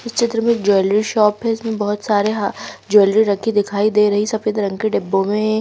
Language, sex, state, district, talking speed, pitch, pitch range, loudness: Hindi, female, Chhattisgarh, Raipur, 225 wpm, 210 Hz, 205-220 Hz, -17 LUFS